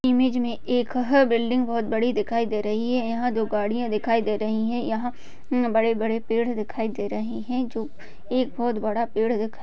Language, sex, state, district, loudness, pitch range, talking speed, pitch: Hindi, female, Uttar Pradesh, Jyotiba Phule Nagar, -24 LUFS, 220-245 Hz, 205 wpm, 230 Hz